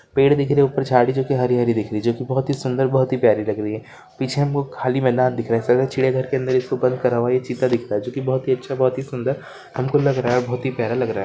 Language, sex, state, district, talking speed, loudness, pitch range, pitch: Hindi, male, Karnataka, Raichur, 290 wpm, -20 LUFS, 125-135 Hz, 130 Hz